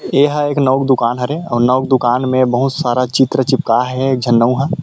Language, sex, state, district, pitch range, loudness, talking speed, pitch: Chhattisgarhi, male, Chhattisgarh, Rajnandgaon, 125-135 Hz, -14 LUFS, 260 wpm, 130 Hz